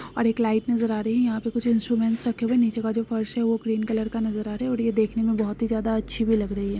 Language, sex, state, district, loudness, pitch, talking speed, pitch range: Marwari, female, Rajasthan, Nagaur, -24 LUFS, 225 Hz, 320 wpm, 220-230 Hz